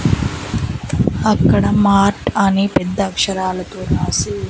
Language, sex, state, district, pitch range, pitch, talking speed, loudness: Telugu, female, Andhra Pradesh, Annamaya, 185-200 Hz, 195 Hz, 80 wpm, -16 LUFS